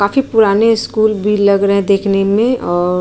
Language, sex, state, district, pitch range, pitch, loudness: Hindi, female, Uttar Pradesh, Jyotiba Phule Nagar, 200-220 Hz, 200 Hz, -13 LUFS